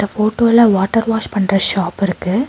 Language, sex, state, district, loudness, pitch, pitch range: Tamil, female, Tamil Nadu, Nilgiris, -14 LUFS, 205 Hz, 195-225 Hz